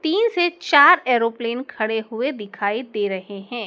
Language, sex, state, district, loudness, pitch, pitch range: Hindi, male, Madhya Pradesh, Dhar, -19 LUFS, 235 Hz, 215-285 Hz